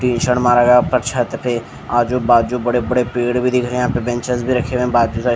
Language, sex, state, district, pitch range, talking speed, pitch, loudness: Hindi, male, Bihar, Patna, 120-125 Hz, 260 wpm, 125 Hz, -16 LUFS